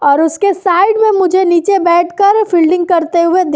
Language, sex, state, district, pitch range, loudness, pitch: Hindi, female, Uttar Pradesh, Jyotiba Phule Nagar, 340-395 Hz, -11 LUFS, 360 Hz